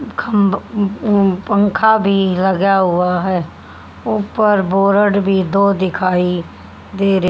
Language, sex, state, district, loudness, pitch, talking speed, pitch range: Hindi, female, Haryana, Charkhi Dadri, -15 LUFS, 195 Hz, 130 wpm, 180-200 Hz